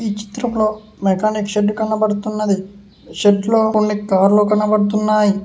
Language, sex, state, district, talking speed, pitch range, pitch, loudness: Telugu, male, Telangana, Hyderabad, 110 wpm, 205-215 Hz, 210 Hz, -17 LUFS